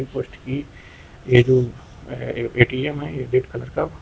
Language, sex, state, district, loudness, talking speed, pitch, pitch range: Hindi, male, Uttar Pradesh, Lucknow, -21 LUFS, 210 wpm, 130 Hz, 120-130 Hz